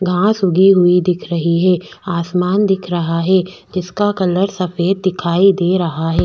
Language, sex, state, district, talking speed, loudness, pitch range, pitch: Hindi, female, Chhattisgarh, Bastar, 165 wpm, -15 LUFS, 175-190 Hz, 180 Hz